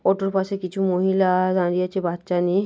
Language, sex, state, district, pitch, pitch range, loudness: Bengali, female, West Bengal, Jhargram, 185 Hz, 180-190 Hz, -22 LUFS